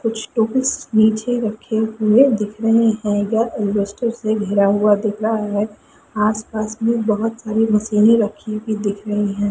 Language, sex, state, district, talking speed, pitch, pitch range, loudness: Hindi, female, Chhattisgarh, Sukma, 145 wpm, 215 Hz, 210-225 Hz, -18 LUFS